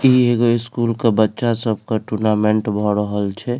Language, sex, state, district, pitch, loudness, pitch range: Maithili, male, Bihar, Supaul, 110 Hz, -18 LUFS, 105-120 Hz